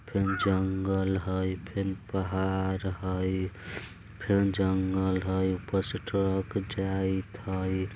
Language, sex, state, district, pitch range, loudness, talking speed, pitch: Bajjika, male, Bihar, Vaishali, 95-100 Hz, -30 LUFS, 105 wpm, 95 Hz